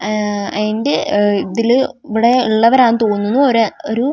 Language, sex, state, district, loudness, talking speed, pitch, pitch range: Malayalam, female, Kerala, Wayanad, -14 LUFS, 160 wpm, 225 Hz, 210-250 Hz